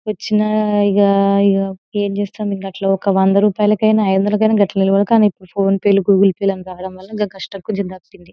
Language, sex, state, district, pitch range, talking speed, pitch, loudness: Telugu, female, Telangana, Nalgonda, 195-210 Hz, 185 wpm, 200 Hz, -16 LUFS